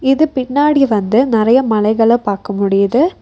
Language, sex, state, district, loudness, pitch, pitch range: Tamil, female, Tamil Nadu, Nilgiris, -13 LUFS, 235 Hz, 210-270 Hz